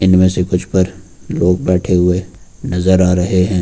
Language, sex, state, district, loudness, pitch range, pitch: Hindi, male, Uttar Pradesh, Lucknow, -14 LUFS, 90-95 Hz, 90 Hz